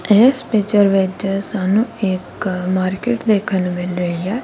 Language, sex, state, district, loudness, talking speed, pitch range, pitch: Punjabi, female, Punjab, Kapurthala, -17 LUFS, 150 wpm, 185-215 Hz, 195 Hz